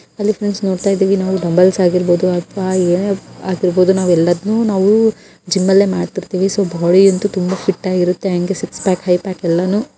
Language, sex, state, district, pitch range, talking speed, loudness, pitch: Kannada, female, Karnataka, Gulbarga, 180-195 Hz, 160 wpm, -15 LUFS, 190 Hz